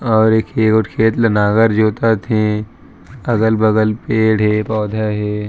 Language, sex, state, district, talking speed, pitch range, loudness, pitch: Chhattisgarhi, male, Chhattisgarh, Raigarh, 130 wpm, 105-110 Hz, -15 LUFS, 110 Hz